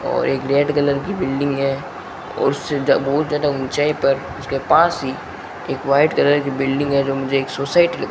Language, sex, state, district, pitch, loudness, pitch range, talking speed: Hindi, male, Rajasthan, Bikaner, 140 Hz, -18 LUFS, 135-145 Hz, 205 wpm